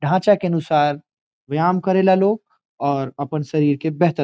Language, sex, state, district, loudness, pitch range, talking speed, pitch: Bhojpuri, male, Bihar, Saran, -19 LUFS, 145-185 Hz, 170 wpm, 160 Hz